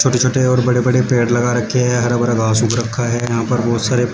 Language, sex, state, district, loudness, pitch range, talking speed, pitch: Hindi, male, Uttar Pradesh, Shamli, -16 LUFS, 120-125 Hz, 275 wpm, 120 Hz